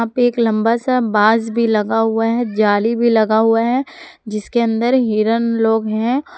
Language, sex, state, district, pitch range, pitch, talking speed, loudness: Hindi, female, Jharkhand, Palamu, 220-240 Hz, 225 Hz, 170 wpm, -16 LUFS